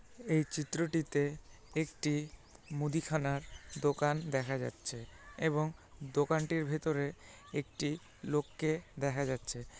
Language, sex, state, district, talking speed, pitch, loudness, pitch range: Bengali, male, West Bengal, Malda, 85 wpm, 150 Hz, -36 LUFS, 140-155 Hz